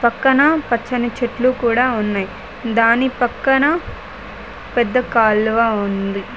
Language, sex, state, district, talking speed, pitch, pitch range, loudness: Telugu, female, Telangana, Mahabubabad, 95 wpm, 235 Hz, 220-255 Hz, -17 LUFS